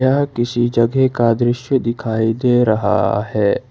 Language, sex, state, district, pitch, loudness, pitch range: Hindi, male, Jharkhand, Ranchi, 120 Hz, -16 LUFS, 110-125 Hz